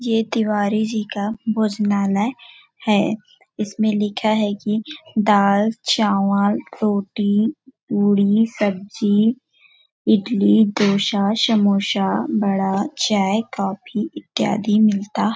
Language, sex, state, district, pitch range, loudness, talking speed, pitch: Hindi, female, Chhattisgarh, Bilaspur, 200-220 Hz, -19 LUFS, 90 wpm, 210 Hz